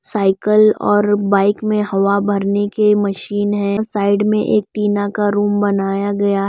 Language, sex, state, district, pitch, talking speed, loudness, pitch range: Hindi, female, Bihar, West Champaran, 205 Hz, 165 wpm, -16 LUFS, 200-210 Hz